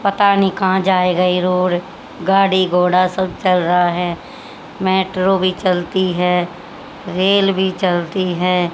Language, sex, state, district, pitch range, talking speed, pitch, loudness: Hindi, female, Haryana, Charkhi Dadri, 180-190 Hz, 135 wpm, 185 Hz, -16 LUFS